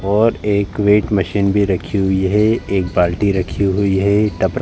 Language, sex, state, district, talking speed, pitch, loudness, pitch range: Hindi, male, Uttar Pradesh, Jalaun, 195 wpm, 100 Hz, -16 LUFS, 95-105 Hz